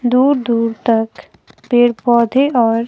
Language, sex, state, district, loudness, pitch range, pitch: Hindi, female, Himachal Pradesh, Shimla, -14 LUFS, 230-250 Hz, 240 Hz